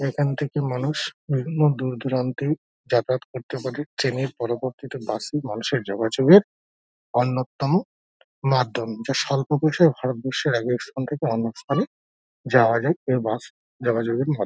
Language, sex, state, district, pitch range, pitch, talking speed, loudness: Bengali, male, West Bengal, Dakshin Dinajpur, 120-145 Hz, 130 Hz, 135 wpm, -23 LUFS